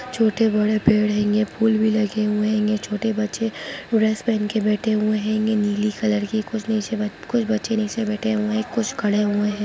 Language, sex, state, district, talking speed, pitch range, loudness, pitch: Hindi, female, Bihar, Sitamarhi, 200 wpm, 210-220 Hz, -21 LUFS, 215 Hz